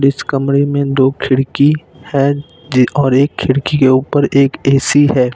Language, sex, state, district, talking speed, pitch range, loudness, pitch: Hindi, male, Jharkhand, Ranchi, 155 wpm, 130-145 Hz, -13 LUFS, 140 Hz